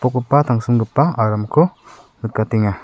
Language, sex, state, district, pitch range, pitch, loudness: Garo, male, Meghalaya, South Garo Hills, 110-145 Hz, 120 Hz, -17 LUFS